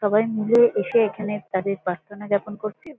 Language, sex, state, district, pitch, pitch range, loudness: Bengali, female, West Bengal, North 24 Parganas, 210 Hz, 200-220 Hz, -22 LUFS